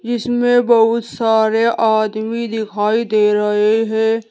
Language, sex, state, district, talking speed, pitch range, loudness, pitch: Hindi, female, Uttar Pradesh, Saharanpur, 110 wpm, 215-230 Hz, -15 LUFS, 225 Hz